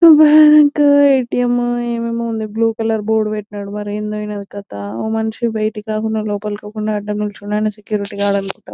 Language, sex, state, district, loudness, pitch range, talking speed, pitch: Telugu, female, Telangana, Nalgonda, -16 LUFS, 210-235 Hz, 160 wpm, 215 Hz